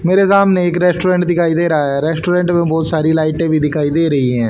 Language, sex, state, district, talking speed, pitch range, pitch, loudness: Hindi, male, Haryana, Rohtak, 240 wpm, 155-175 Hz, 165 Hz, -14 LUFS